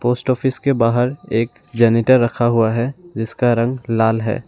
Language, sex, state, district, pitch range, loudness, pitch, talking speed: Hindi, male, Assam, Sonitpur, 115-130 Hz, -17 LUFS, 120 Hz, 175 wpm